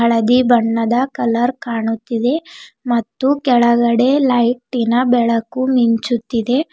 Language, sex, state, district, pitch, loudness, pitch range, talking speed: Kannada, female, Karnataka, Bidar, 240 Hz, -16 LUFS, 230-255 Hz, 80 wpm